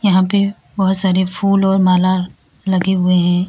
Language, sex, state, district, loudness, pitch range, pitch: Hindi, female, Uttar Pradesh, Lalitpur, -15 LUFS, 185-195 Hz, 185 Hz